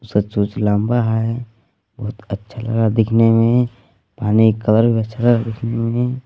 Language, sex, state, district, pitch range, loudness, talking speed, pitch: Hindi, male, Jharkhand, Palamu, 110-115 Hz, -17 LUFS, 180 wpm, 115 Hz